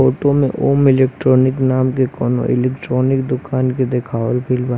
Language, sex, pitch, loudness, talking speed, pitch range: Bhojpuri, male, 130 Hz, -16 LUFS, 150 wpm, 125-130 Hz